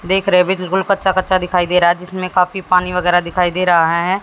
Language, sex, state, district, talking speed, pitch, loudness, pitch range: Hindi, female, Haryana, Jhajjar, 270 wpm, 180 Hz, -15 LUFS, 180-185 Hz